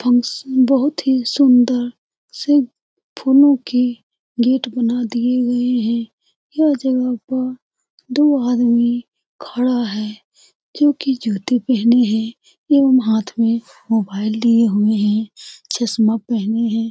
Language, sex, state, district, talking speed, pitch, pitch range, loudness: Hindi, female, Bihar, Lakhisarai, 130 wpm, 245 Hz, 230-260 Hz, -17 LUFS